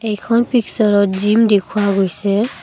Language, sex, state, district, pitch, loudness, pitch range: Assamese, female, Assam, Kamrup Metropolitan, 210 Hz, -15 LUFS, 200-225 Hz